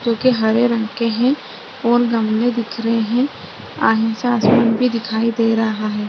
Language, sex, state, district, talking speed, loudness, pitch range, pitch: Hindi, female, Bihar, Saharsa, 160 wpm, -17 LUFS, 225-240 Hz, 230 Hz